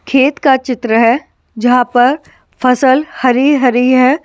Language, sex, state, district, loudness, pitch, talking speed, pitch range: Hindi, male, Delhi, New Delhi, -12 LUFS, 255 Hz, 140 wpm, 245-270 Hz